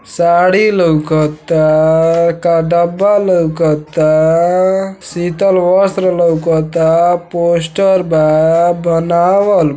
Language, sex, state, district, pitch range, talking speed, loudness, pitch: Bhojpuri, male, Uttar Pradesh, Deoria, 160-180 Hz, 75 wpm, -12 LUFS, 170 Hz